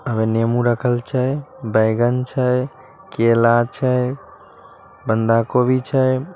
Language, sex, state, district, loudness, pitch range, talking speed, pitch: Magahi, male, Bihar, Samastipur, -18 LUFS, 115-130 Hz, 105 wpm, 125 Hz